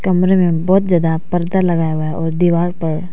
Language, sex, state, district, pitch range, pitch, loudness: Hindi, female, Arunachal Pradesh, Papum Pare, 165-180 Hz, 175 Hz, -15 LUFS